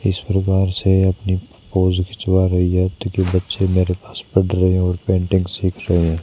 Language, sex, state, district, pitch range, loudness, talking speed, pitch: Hindi, male, Haryana, Charkhi Dadri, 90-95 Hz, -18 LUFS, 190 wpm, 95 Hz